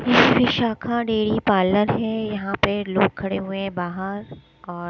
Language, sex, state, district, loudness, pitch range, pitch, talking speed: Hindi, female, Chandigarh, Chandigarh, -21 LUFS, 190-215 Hz, 200 Hz, 145 wpm